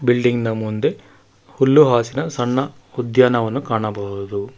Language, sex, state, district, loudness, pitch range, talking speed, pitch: Kannada, male, Karnataka, Bangalore, -18 LUFS, 110-130 Hz, 105 wpm, 120 Hz